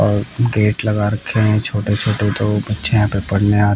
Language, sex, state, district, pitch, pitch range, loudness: Hindi, male, Haryana, Jhajjar, 105 Hz, 105-110 Hz, -17 LUFS